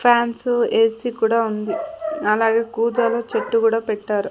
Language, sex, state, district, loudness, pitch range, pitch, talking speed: Telugu, female, Andhra Pradesh, Sri Satya Sai, -20 LUFS, 225-240 Hz, 230 Hz, 125 wpm